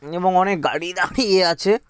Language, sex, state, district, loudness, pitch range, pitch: Bengali, male, West Bengal, Paschim Medinipur, -19 LUFS, 170-195 Hz, 185 Hz